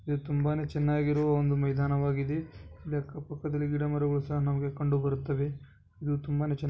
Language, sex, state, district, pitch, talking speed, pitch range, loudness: Kannada, male, Karnataka, Bijapur, 145 Hz, 135 wpm, 140-150 Hz, -30 LUFS